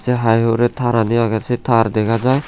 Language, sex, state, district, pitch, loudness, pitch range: Chakma, male, Tripura, Unakoti, 115 Hz, -16 LUFS, 115-120 Hz